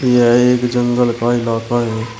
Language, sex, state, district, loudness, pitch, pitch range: Hindi, male, Uttar Pradesh, Shamli, -15 LUFS, 120 Hz, 115-125 Hz